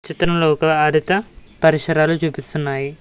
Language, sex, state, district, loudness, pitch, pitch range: Telugu, male, Telangana, Mahabubabad, -17 LUFS, 155 Hz, 150-165 Hz